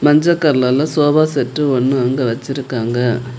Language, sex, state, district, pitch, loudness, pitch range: Tamil, female, Tamil Nadu, Kanyakumari, 135 Hz, -15 LUFS, 125-150 Hz